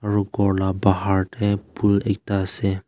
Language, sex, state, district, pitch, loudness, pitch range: Nagamese, male, Nagaland, Kohima, 100 Hz, -22 LUFS, 95-105 Hz